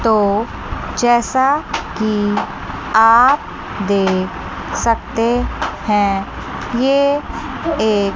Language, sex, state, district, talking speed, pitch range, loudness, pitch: Hindi, female, Chandigarh, Chandigarh, 65 wpm, 205-245 Hz, -17 LUFS, 225 Hz